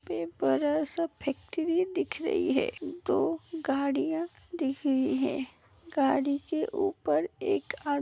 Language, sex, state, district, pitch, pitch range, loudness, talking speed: Hindi, female, Uttar Pradesh, Hamirpur, 325 Hz, 280-360 Hz, -30 LUFS, 125 wpm